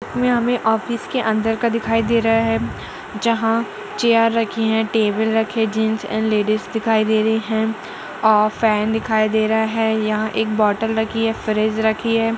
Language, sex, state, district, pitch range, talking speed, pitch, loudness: Hindi, female, Uttar Pradesh, Budaun, 220-225 Hz, 180 wpm, 220 Hz, -19 LUFS